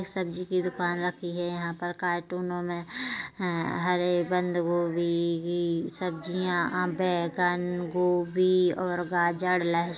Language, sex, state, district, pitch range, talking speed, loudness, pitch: Hindi, female, Chhattisgarh, Kabirdham, 175-180 Hz, 140 wpm, -28 LUFS, 175 Hz